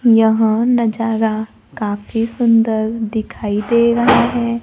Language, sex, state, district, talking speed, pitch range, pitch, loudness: Hindi, female, Maharashtra, Gondia, 105 wpm, 220-235 Hz, 225 Hz, -16 LUFS